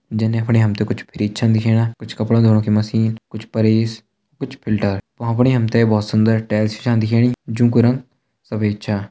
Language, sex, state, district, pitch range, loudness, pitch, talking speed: Hindi, male, Uttarakhand, Tehri Garhwal, 110-115 Hz, -18 LUFS, 110 Hz, 205 wpm